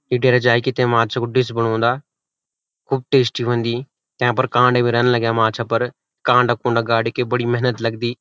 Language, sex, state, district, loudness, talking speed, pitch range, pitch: Garhwali, male, Uttarakhand, Uttarkashi, -18 LUFS, 175 wpm, 115-125 Hz, 120 Hz